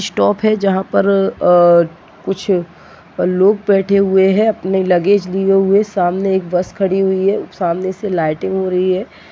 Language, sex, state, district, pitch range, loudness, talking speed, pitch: Hindi, female, Chhattisgarh, Jashpur, 180-200 Hz, -15 LUFS, 165 wpm, 190 Hz